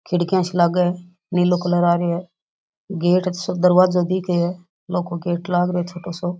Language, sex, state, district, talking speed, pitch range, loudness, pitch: Rajasthani, female, Rajasthan, Nagaur, 205 wpm, 175-180 Hz, -20 LUFS, 180 Hz